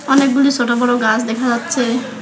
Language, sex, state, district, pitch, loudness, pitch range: Bengali, male, West Bengal, Alipurduar, 245 Hz, -15 LUFS, 235-270 Hz